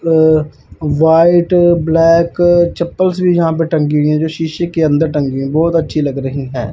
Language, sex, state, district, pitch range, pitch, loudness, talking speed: Hindi, male, Punjab, Pathankot, 150-170 Hz, 160 Hz, -13 LUFS, 185 wpm